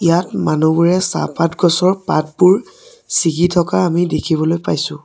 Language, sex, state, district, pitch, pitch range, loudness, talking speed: Assamese, male, Assam, Sonitpur, 175 Hz, 165-185 Hz, -15 LUFS, 120 wpm